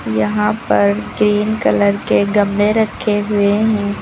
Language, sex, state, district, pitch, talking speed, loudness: Hindi, female, Uttar Pradesh, Lucknow, 205 Hz, 135 wpm, -15 LUFS